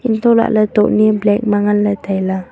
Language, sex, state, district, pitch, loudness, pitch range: Wancho, female, Arunachal Pradesh, Longding, 210 Hz, -14 LUFS, 205-220 Hz